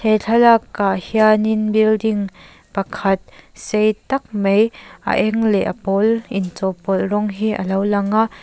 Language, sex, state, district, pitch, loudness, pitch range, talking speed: Mizo, female, Mizoram, Aizawl, 210 Hz, -18 LUFS, 195-220 Hz, 150 wpm